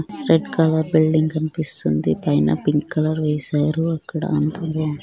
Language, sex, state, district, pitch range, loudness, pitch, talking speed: Telugu, female, Andhra Pradesh, Guntur, 150-160 Hz, -20 LUFS, 155 Hz, 145 wpm